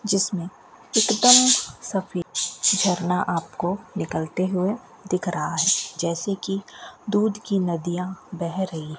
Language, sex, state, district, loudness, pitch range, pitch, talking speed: Hindi, female, Rajasthan, Bikaner, -22 LUFS, 175-200 Hz, 185 Hz, 125 wpm